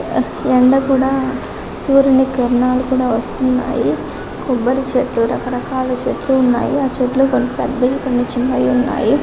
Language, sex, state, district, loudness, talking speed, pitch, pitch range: Telugu, female, Telangana, Karimnagar, -16 LUFS, 115 wpm, 255 Hz, 250-265 Hz